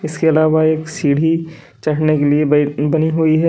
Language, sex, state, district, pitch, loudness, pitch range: Hindi, male, Uttar Pradesh, Lalitpur, 155 Hz, -15 LUFS, 150-160 Hz